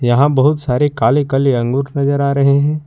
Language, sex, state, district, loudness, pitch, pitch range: Hindi, male, Jharkhand, Ranchi, -14 LUFS, 140 Hz, 135-145 Hz